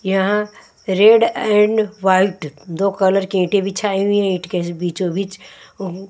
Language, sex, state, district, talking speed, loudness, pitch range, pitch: Hindi, female, Odisha, Nuapada, 155 wpm, -17 LUFS, 185-205 Hz, 195 Hz